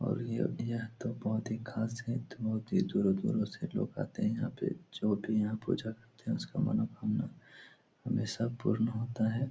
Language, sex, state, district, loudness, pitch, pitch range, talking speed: Hindi, male, Bihar, Supaul, -35 LUFS, 115 Hz, 110-125 Hz, 185 wpm